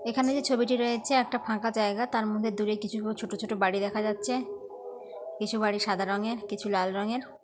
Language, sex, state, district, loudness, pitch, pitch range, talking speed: Bengali, female, West Bengal, North 24 Parganas, -29 LUFS, 215 Hz, 205-235 Hz, 185 wpm